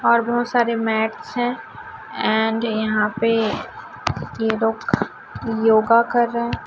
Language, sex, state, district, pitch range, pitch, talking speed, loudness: Hindi, female, Chhattisgarh, Raipur, 220-235 Hz, 225 Hz, 125 wpm, -20 LUFS